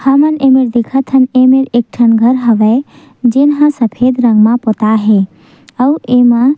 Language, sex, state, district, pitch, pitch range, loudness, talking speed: Chhattisgarhi, female, Chhattisgarh, Sukma, 250 Hz, 230-270 Hz, -10 LUFS, 165 wpm